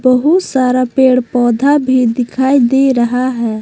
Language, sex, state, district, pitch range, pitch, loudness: Hindi, female, Jharkhand, Palamu, 245-265 Hz, 255 Hz, -12 LUFS